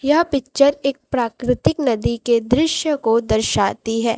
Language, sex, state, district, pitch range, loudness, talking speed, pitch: Hindi, female, Chhattisgarh, Raipur, 230-280 Hz, -18 LUFS, 145 wpm, 250 Hz